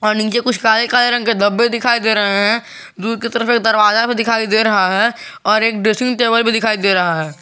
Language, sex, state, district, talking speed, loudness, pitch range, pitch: Hindi, male, Jharkhand, Garhwa, 245 wpm, -14 LUFS, 210-235 Hz, 225 Hz